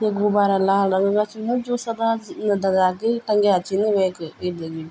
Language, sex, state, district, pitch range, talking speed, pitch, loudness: Garhwali, female, Uttarakhand, Tehri Garhwal, 190-220 Hz, 145 wpm, 200 Hz, -21 LUFS